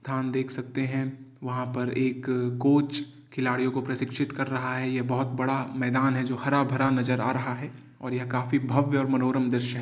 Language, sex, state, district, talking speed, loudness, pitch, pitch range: Hindi, male, Uttar Pradesh, Varanasi, 195 wpm, -27 LUFS, 130 Hz, 125-135 Hz